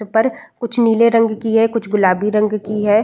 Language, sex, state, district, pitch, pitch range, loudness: Hindi, female, Bihar, Saran, 220 Hz, 210-230 Hz, -16 LUFS